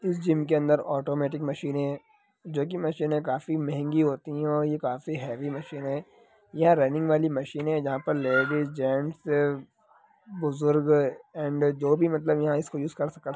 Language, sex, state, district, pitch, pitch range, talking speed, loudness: Hindi, male, Bihar, Sitamarhi, 150 Hz, 140-155 Hz, 155 wpm, -27 LUFS